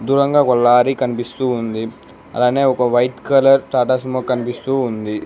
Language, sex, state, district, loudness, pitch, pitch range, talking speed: Telugu, male, Telangana, Mahabubabad, -16 LUFS, 125 Hz, 120-135 Hz, 150 wpm